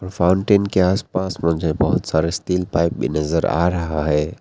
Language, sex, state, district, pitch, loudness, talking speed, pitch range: Hindi, male, Arunachal Pradesh, Papum Pare, 85 Hz, -19 LUFS, 175 wpm, 80-95 Hz